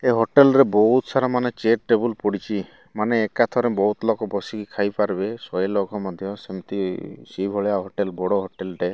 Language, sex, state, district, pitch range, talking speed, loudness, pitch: Odia, male, Odisha, Malkangiri, 100-115 Hz, 170 wpm, -22 LUFS, 105 Hz